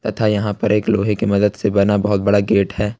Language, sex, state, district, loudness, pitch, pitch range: Hindi, male, Jharkhand, Ranchi, -17 LUFS, 105 Hz, 100-105 Hz